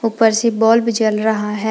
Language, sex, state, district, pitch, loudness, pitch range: Hindi, female, Jharkhand, Palamu, 225 Hz, -15 LUFS, 220-230 Hz